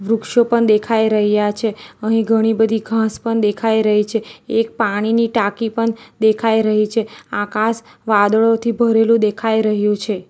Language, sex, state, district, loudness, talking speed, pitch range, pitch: Gujarati, female, Gujarat, Valsad, -17 LUFS, 150 wpm, 215-225 Hz, 220 Hz